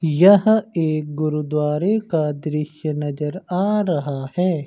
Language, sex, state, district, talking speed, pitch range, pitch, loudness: Hindi, male, Uttar Pradesh, Lucknow, 115 wpm, 150-185 Hz, 155 Hz, -20 LUFS